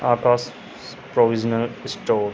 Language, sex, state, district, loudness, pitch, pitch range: Hindi, male, Uttar Pradesh, Hamirpur, -21 LUFS, 120 Hz, 115-120 Hz